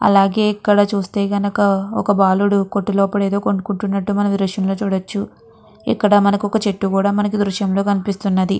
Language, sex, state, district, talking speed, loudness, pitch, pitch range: Telugu, female, Andhra Pradesh, Guntur, 175 wpm, -17 LUFS, 200 Hz, 195-205 Hz